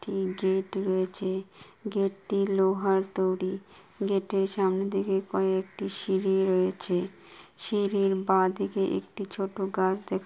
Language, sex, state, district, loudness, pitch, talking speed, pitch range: Bengali, female, West Bengal, Kolkata, -28 LUFS, 190 Hz, 115 wpm, 190-195 Hz